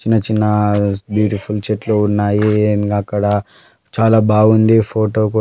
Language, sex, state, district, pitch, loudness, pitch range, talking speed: Telugu, male, Telangana, Karimnagar, 105 Hz, -15 LUFS, 105-110 Hz, 120 wpm